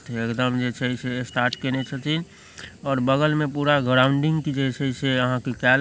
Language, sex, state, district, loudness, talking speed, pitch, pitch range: Maithili, male, Bihar, Samastipur, -23 LUFS, 175 wpm, 130 Hz, 125-145 Hz